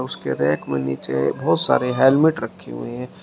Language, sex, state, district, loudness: Hindi, male, Uttar Pradesh, Shamli, -20 LUFS